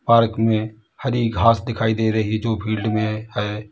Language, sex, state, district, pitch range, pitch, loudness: Hindi, male, Uttar Pradesh, Lalitpur, 110-115 Hz, 110 Hz, -20 LUFS